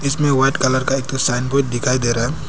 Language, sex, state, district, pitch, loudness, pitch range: Hindi, male, Arunachal Pradesh, Papum Pare, 135 Hz, -17 LUFS, 125-140 Hz